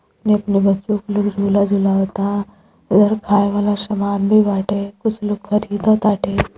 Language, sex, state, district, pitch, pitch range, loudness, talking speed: Bhojpuri, female, Uttar Pradesh, Deoria, 205 Hz, 200-210 Hz, -17 LUFS, 135 wpm